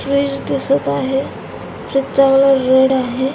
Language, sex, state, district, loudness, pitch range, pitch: Marathi, female, Maharashtra, Pune, -15 LUFS, 260-275 Hz, 270 Hz